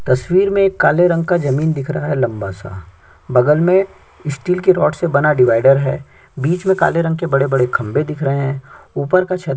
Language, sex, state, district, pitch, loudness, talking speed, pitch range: Hindi, male, Chhattisgarh, Sukma, 150 Hz, -16 LUFS, 215 wpm, 135-180 Hz